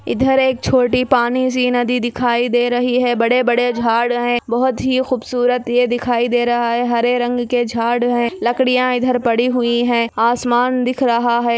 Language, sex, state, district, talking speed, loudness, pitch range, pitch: Hindi, female, Andhra Pradesh, Anantapur, 180 wpm, -16 LUFS, 240-250 Hz, 245 Hz